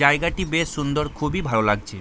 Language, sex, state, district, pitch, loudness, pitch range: Bengali, male, West Bengal, Jalpaiguri, 150 Hz, -22 LUFS, 110-165 Hz